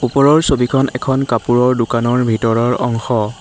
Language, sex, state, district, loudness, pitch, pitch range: Assamese, male, Assam, Hailakandi, -15 LUFS, 125 Hz, 115-135 Hz